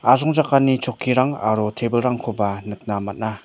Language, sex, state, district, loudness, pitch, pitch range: Garo, male, Meghalaya, North Garo Hills, -20 LUFS, 120 Hz, 105-130 Hz